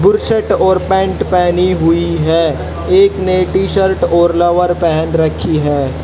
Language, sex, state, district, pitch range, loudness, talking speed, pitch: Hindi, female, Haryana, Jhajjar, 165-190 Hz, -13 LUFS, 130 wpm, 175 Hz